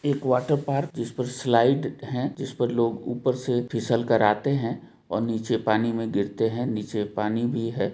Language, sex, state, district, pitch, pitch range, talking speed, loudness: Hindi, male, Jharkhand, Jamtara, 120 Hz, 115-130 Hz, 190 wpm, -25 LUFS